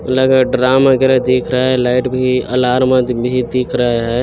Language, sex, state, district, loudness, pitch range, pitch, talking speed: Hindi, male, Chhattisgarh, Bilaspur, -13 LUFS, 125-130 Hz, 125 Hz, 200 wpm